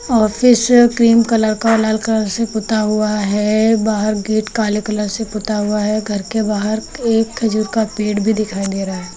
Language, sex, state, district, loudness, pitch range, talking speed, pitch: Hindi, female, Uttar Pradesh, Lucknow, -16 LUFS, 210-225 Hz, 195 wpm, 215 Hz